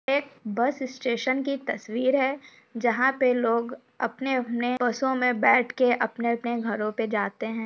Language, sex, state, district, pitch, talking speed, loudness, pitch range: Hindi, female, Bihar, Samastipur, 245 Hz, 165 wpm, -25 LUFS, 235-260 Hz